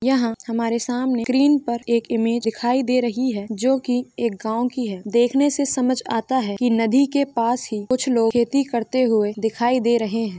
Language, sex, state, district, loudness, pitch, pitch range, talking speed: Hindi, female, Jharkhand, Sahebganj, -21 LUFS, 240 Hz, 230-255 Hz, 210 wpm